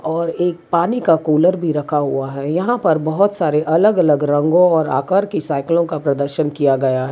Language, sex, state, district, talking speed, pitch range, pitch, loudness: Hindi, female, Gujarat, Valsad, 210 wpm, 145-175 Hz, 155 Hz, -16 LUFS